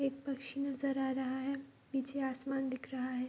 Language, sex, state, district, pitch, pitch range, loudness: Hindi, female, Bihar, Vaishali, 270 Hz, 265-275 Hz, -38 LUFS